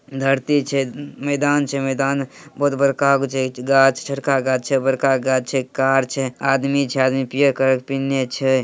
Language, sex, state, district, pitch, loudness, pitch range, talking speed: Hindi, male, Bihar, Samastipur, 135 Hz, -19 LUFS, 130-140 Hz, 180 wpm